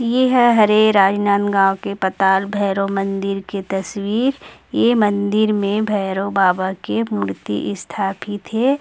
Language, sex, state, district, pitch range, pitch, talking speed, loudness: Chhattisgarhi, female, Chhattisgarh, Rajnandgaon, 195-215 Hz, 200 Hz, 130 wpm, -18 LUFS